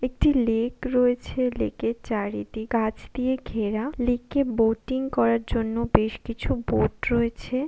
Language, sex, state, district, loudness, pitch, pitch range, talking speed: Bengali, female, West Bengal, Kolkata, -25 LUFS, 235 Hz, 220-255 Hz, 125 wpm